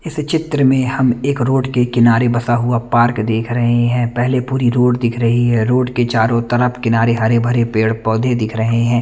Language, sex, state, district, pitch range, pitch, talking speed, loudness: Hindi, male, Chandigarh, Chandigarh, 115-125 Hz, 120 Hz, 205 wpm, -15 LUFS